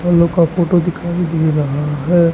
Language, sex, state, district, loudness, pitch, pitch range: Hindi, male, Haryana, Rohtak, -15 LUFS, 170 Hz, 155-175 Hz